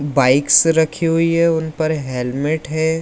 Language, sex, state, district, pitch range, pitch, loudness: Hindi, male, Bihar, Lakhisarai, 145-165 Hz, 160 Hz, -16 LUFS